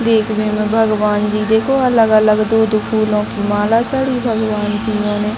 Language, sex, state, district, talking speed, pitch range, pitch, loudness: Hindi, female, Bihar, Gopalganj, 180 wpm, 210-225 Hz, 215 Hz, -15 LUFS